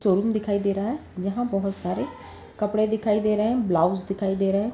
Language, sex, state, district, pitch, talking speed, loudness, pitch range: Hindi, female, Uttar Pradesh, Jalaun, 205 Hz, 225 wpm, -25 LUFS, 195-220 Hz